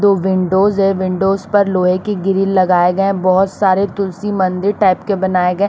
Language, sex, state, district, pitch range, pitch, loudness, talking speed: Hindi, female, Chhattisgarh, Raipur, 185-200 Hz, 195 Hz, -14 LUFS, 200 wpm